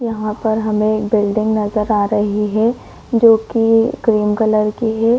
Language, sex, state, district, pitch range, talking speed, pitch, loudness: Hindi, female, Chhattisgarh, Korba, 210-225 Hz, 175 wpm, 215 Hz, -16 LUFS